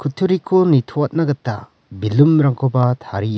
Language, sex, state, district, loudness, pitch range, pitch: Garo, male, Meghalaya, West Garo Hills, -17 LUFS, 125-155 Hz, 140 Hz